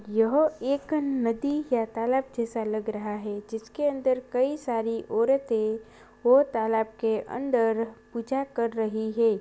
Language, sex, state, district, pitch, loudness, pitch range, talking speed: Hindi, male, Bihar, Jahanabad, 230 Hz, -27 LUFS, 225-265 Hz, 140 wpm